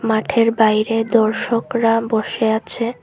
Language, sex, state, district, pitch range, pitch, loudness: Bengali, female, Tripura, Unakoti, 220-230 Hz, 225 Hz, -17 LUFS